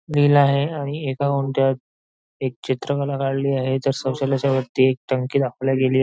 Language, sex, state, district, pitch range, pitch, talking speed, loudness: Marathi, male, Maharashtra, Nagpur, 130-140 Hz, 135 Hz, 160 wpm, -21 LUFS